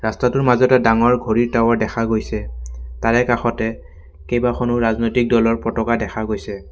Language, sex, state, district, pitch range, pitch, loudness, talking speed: Assamese, male, Assam, Kamrup Metropolitan, 110-120 Hz, 115 Hz, -18 LUFS, 135 wpm